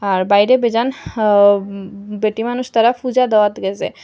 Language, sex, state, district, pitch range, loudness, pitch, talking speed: Bengali, female, Assam, Hailakandi, 200-240 Hz, -15 LUFS, 215 Hz, 150 wpm